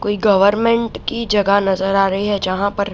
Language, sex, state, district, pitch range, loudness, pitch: Hindi, female, Bihar, Araria, 195-210 Hz, -16 LUFS, 200 Hz